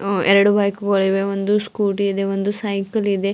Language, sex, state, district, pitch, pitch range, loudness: Kannada, female, Karnataka, Bidar, 200 Hz, 195-205 Hz, -19 LUFS